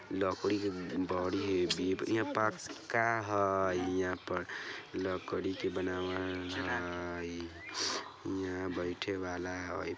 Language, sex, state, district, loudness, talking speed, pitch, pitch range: Bajjika, male, Bihar, Vaishali, -35 LUFS, 80 wpm, 90 Hz, 90-95 Hz